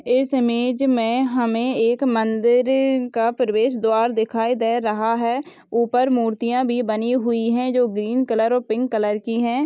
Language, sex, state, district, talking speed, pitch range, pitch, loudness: Hindi, female, Bihar, Saharsa, 170 wpm, 225-250 Hz, 235 Hz, -20 LUFS